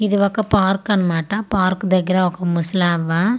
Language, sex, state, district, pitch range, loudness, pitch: Telugu, female, Andhra Pradesh, Manyam, 175-200 Hz, -18 LUFS, 190 Hz